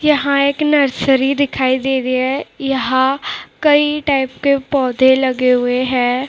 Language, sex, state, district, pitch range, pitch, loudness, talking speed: Hindi, female, Maharashtra, Mumbai Suburban, 260-285 Hz, 270 Hz, -15 LUFS, 145 wpm